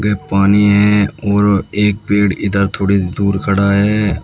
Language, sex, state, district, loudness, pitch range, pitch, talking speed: Hindi, male, Uttar Pradesh, Shamli, -14 LUFS, 100-105 Hz, 100 Hz, 155 wpm